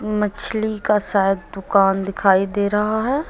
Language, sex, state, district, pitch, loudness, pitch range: Hindi, female, Jharkhand, Deoghar, 205 Hz, -19 LUFS, 195-215 Hz